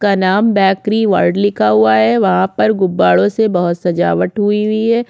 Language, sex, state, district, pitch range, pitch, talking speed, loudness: Hindi, female, Chhattisgarh, Korba, 185-215 Hz, 200 Hz, 190 wpm, -13 LUFS